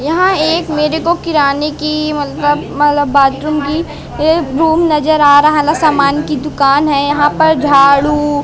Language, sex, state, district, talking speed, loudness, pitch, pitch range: Hindi, female, Madhya Pradesh, Katni, 165 wpm, -12 LUFS, 295 Hz, 285-310 Hz